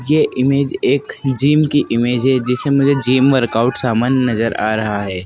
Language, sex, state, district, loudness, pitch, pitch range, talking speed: Hindi, male, Madhya Pradesh, Dhar, -15 LUFS, 130 Hz, 115-140 Hz, 185 wpm